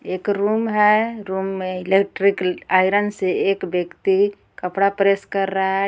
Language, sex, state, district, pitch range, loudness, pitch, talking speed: Hindi, female, Jharkhand, Garhwa, 190-200 Hz, -20 LUFS, 195 Hz, 155 wpm